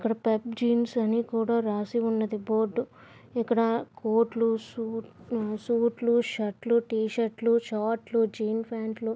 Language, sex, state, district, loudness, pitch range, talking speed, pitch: Telugu, female, Andhra Pradesh, Visakhapatnam, -28 LUFS, 220-235 Hz, 145 wpm, 230 Hz